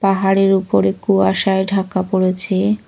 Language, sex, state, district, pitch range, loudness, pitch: Bengali, female, Jharkhand, Jamtara, 185-195 Hz, -16 LUFS, 190 Hz